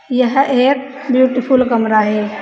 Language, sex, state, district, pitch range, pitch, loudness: Hindi, female, Uttar Pradesh, Saharanpur, 230-270 Hz, 255 Hz, -14 LUFS